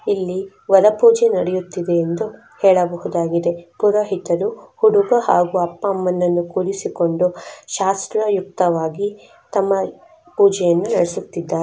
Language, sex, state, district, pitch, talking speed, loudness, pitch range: Kannada, female, Karnataka, Chamarajanagar, 190 Hz, 75 wpm, -18 LUFS, 175-210 Hz